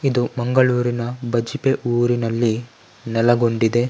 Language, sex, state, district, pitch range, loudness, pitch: Kannada, male, Karnataka, Dakshina Kannada, 115-125 Hz, -20 LUFS, 120 Hz